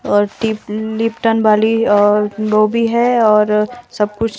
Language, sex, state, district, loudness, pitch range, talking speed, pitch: Hindi, female, Himachal Pradesh, Shimla, -14 LUFS, 210-225 Hz, 180 wpm, 215 Hz